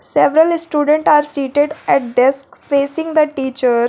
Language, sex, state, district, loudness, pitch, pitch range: English, female, Jharkhand, Garhwa, -15 LUFS, 295 Hz, 270-310 Hz